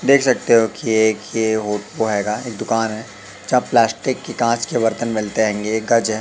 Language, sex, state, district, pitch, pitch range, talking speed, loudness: Hindi, male, Madhya Pradesh, Katni, 110 Hz, 110-115 Hz, 210 wpm, -18 LUFS